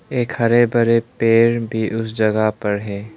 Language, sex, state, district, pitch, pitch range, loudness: Hindi, male, Arunachal Pradesh, Lower Dibang Valley, 115 Hz, 110-115 Hz, -18 LUFS